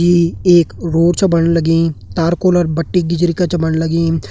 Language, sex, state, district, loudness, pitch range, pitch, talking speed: Hindi, male, Uttarakhand, Uttarkashi, -14 LUFS, 165-175 Hz, 170 Hz, 165 wpm